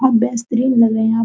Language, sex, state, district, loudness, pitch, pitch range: Hindi, female, Bihar, Araria, -15 LUFS, 235 Hz, 230-245 Hz